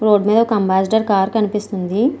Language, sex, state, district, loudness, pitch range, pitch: Telugu, female, Andhra Pradesh, Srikakulam, -16 LUFS, 195-220 Hz, 210 Hz